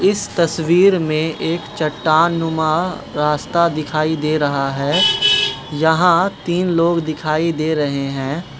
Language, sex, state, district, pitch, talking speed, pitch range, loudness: Hindi, male, Manipur, Imphal West, 160 Hz, 120 wpm, 150-170 Hz, -17 LUFS